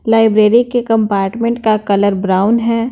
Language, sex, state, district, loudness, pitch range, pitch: Hindi, female, Bihar, Patna, -13 LUFS, 205-230 Hz, 225 Hz